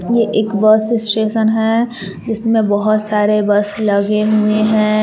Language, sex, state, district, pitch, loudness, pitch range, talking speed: Hindi, female, Jharkhand, Palamu, 215 Hz, -14 LUFS, 210-220 Hz, 145 wpm